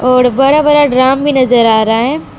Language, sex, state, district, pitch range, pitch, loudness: Hindi, female, Jharkhand, Deoghar, 245-285 Hz, 260 Hz, -9 LUFS